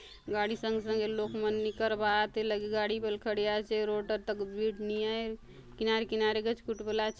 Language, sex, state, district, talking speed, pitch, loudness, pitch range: Halbi, female, Chhattisgarh, Bastar, 225 wpm, 215 Hz, -33 LUFS, 210-220 Hz